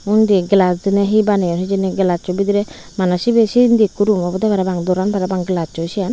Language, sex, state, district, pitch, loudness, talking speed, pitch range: Chakma, female, Tripura, Unakoti, 195 Hz, -16 LUFS, 185 wpm, 180-205 Hz